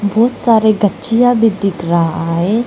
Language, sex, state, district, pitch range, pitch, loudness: Hindi, female, Arunachal Pradesh, Lower Dibang Valley, 170-230 Hz, 210 Hz, -13 LUFS